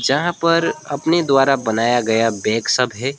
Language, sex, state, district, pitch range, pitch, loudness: Hindi, male, West Bengal, Alipurduar, 115-150 Hz, 135 Hz, -17 LUFS